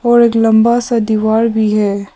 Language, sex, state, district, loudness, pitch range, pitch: Hindi, male, Arunachal Pradesh, Papum Pare, -12 LUFS, 215-235 Hz, 225 Hz